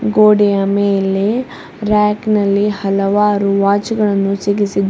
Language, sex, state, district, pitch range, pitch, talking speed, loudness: Kannada, female, Karnataka, Bidar, 195-210 Hz, 205 Hz, 60 wpm, -14 LUFS